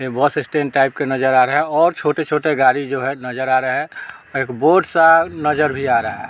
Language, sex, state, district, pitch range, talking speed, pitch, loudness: Hindi, male, Bihar, Vaishali, 130-150 Hz, 260 wpm, 145 Hz, -17 LUFS